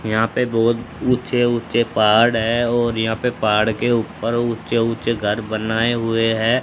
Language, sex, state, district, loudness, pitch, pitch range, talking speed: Hindi, male, Haryana, Charkhi Dadri, -19 LUFS, 115 Hz, 110-120 Hz, 170 wpm